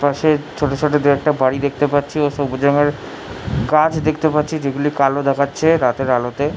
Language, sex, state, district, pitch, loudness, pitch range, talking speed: Bengali, male, West Bengal, Jhargram, 145 Hz, -17 LUFS, 140-150 Hz, 185 wpm